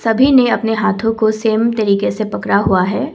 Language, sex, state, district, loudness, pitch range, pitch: Hindi, female, Assam, Kamrup Metropolitan, -14 LUFS, 215-230 Hz, 220 Hz